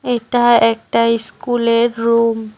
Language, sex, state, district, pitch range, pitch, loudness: Bengali, female, West Bengal, Cooch Behar, 230-240 Hz, 230 Hz, -14 LUFS